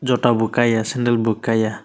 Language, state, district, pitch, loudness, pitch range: Kokborok, Tripura, West Tripura, 115 Hz, -19 LUFS, 110-120 Hz